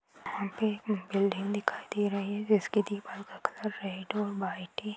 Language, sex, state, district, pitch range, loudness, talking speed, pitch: Hindi, female, Uttar Pradesh, Deoria, 195-210 Hz, -32 LUFS, 195 wpm, 205 Hz